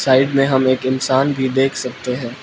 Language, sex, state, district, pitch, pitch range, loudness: Hindi, male, Manipur, Imphal West, 130 Hz, 130-135 Hz, -17 LUFS